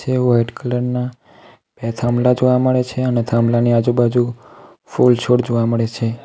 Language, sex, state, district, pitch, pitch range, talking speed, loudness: Gujarati, male, Gujarat, Valsad, 120 Hz, 115-125 Hz, 145 wpm, -17 LUFS